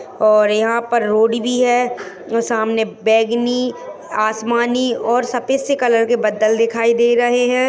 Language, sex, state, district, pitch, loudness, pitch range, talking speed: Hindi, female, Uttarakhand, Tehri Garhwal, 235 Hz, -16 LUFS, 220-245 Hz, 150 wpm